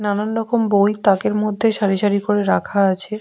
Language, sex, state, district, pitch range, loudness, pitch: Bengali, female, West Bengal, Jhargram, 200-215 Hz, -18 LUFS, 205 Hz